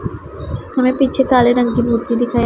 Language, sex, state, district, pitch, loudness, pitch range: Hindi, female, Punjab, Pathankot, 245 Hz, -15 LUFS, 240-255 Hz